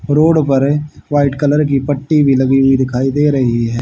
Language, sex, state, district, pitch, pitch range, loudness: Hindi, male, Haryana, Jhajjar, 140 Hz, 135-145 Hz, -13 LUFS